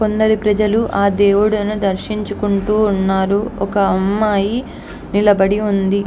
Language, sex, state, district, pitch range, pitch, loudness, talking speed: Telugu, female, Andhra Pradesh, Anantapur, 200-215 Hz, 205 Hz, -16 LUFS, 100 wpm